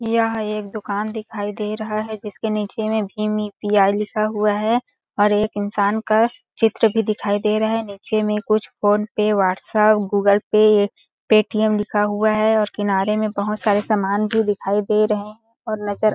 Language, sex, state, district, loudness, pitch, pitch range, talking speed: Hindi, female, Chhattisgarh, Balrampur, -20 LUFS, 210 Hz, 205-215 Hz, 185 wpm